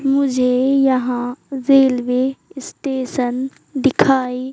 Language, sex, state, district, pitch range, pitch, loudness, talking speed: Hindi, female, Madhya Pradesh, Katni, 250-275 Hz, 265 Hz, -17 LUFS, 65 wpm